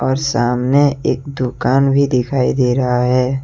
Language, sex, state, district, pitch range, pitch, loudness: Hindi, male, Jharkhand, Deoghar, 125-140 Hz, 130 Hz, -15 LUFS